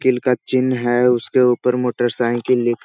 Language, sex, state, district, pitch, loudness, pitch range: Hindi, male, Bihar, Jahanabad, 125 Hz, -18 LUFS, 120-125 Hz